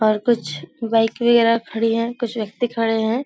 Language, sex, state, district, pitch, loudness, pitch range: Hindi, female, Bihar, Supaul, 230 Hz, -20 LUFS, 220-235 Hz